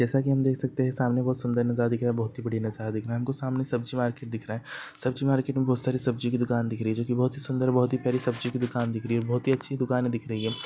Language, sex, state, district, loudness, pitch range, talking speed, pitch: Hindi, male, Maharashtra, Dhule, -28 LUFS, 120-130 Hz, 330 wpm, 125 Hz